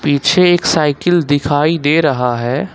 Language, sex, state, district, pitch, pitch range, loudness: Hindi, male, Uttar Pradesh, Lucknow, 150 Hz, 145-175 Hz, -13 LUFS